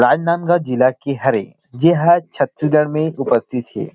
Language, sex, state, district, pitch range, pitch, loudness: Chhattisgarhi, male, Chhattisgarh, Rajnandgaon, 130-170 Hz, 150 Hz, -17 LUFS